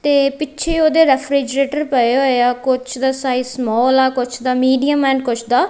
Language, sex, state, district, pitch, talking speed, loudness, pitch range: Punjabi, female, Punjab, Kapurthala, 265 Hz, 190 wpm, -16 LUFS, 250-280 Hz